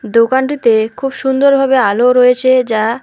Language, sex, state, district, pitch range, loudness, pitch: Bengali, female, West Bengal, Alipurduar, 230-265 Hz, -12 LUFS, 250 Hz